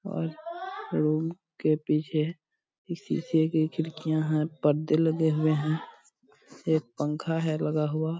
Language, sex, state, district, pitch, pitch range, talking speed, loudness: Hindi, male, Bihar, Purnia, 160 Hz, 155-165 Hz, 130 wpm, -28 LUFS